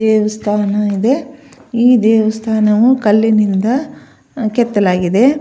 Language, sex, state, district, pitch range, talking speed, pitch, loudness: Kannada, female, Karnataka, Belgaum, 210-245 Hz, 65 wpm, 220 Hz, -13 LUFS